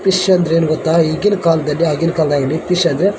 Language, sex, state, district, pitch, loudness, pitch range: Kannada, male, Karnataka, Dharwad, 165 Hz, -15 LUFS, 155-180 Hz